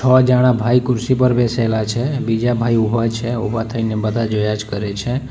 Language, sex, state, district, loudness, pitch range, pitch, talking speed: Gujarati, male, Gujarat, Valsad, -17 LUFS, 110-125 Hz, 115 Hz, 205 wpm